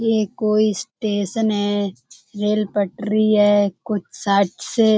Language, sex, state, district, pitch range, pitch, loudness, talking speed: Hindi, female, Uttar Pradesh, Budaun, 205-215 Hz, 210 Hz, -20 LUFS, 120 wpm